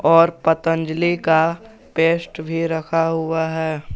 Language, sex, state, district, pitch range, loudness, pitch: Hindi, male, Jharkhand, Garhwa, 160-165 Hz, -19 LUFS, 165 Hz